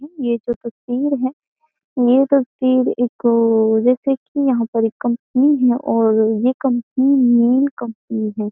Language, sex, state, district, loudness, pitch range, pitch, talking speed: Hindi, female, Uttar Pradesh, Jyotiba Phule Nagar, -17 LUFS, 230-270 Hz, 245 Hz, 150 wpm